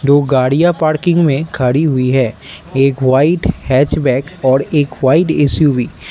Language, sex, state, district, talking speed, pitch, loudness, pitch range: Hindi, male, Arunachal Pradesh, Lower Dibang Valley, 145 wpm, 140 Hz, -13 LUFS, 130-155 Hz